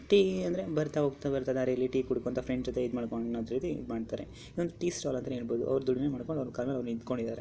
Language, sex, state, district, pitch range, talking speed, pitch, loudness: Kannada, male, Karnataka, Dharwad, 120-145 Hz, 185 wpm, 130 Hz, -33 LUFS